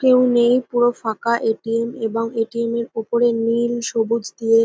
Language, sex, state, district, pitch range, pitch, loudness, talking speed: Bengali, female, West Bengal, North 24 Parganas, 225-240 Hz, 235 Hz, -19 LUFS, 205 wpm